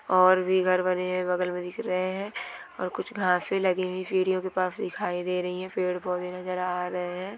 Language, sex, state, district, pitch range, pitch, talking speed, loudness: Hindi, female, Bihar, Gopalganj, 180-185 Hz, 185 Hz, 210 wpm, -27 LUFS